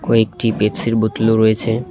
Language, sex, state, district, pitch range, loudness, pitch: Bengali, male, West Bengal, Cooch Behar, 110-115 Hz, -16 LUFS, 110 Hz